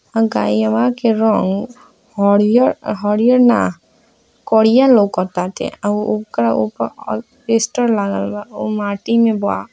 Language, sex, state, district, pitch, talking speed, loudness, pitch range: Hindi, female, Bihar, East Champaran, 210 Hz, 140 wpm, -16 LUFS, 185-230 Hz